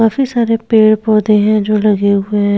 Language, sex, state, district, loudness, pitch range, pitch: Hindi, female, Uttar Pradesh, Hamirpur, -12 LUFS, 210-225 Hz, 215 Hz